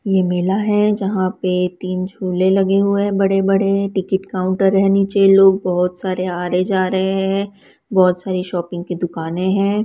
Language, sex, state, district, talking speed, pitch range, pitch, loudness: Hindi, female, Rajasthan, Jaipur, 185 wpm, 185-195 Hz, 190 Hz, -17 LUFS